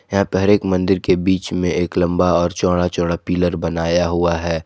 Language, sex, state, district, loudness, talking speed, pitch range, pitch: Hindi, male, Jharkhand, Garhwa, -18 LUFS, 220 wpm, 85-90 Hz, 90 Hz